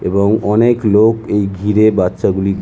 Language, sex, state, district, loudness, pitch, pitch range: Bengali, male, West Bengal, Jhargram, -13 LUFS, 105 Hz, 95-110 Hz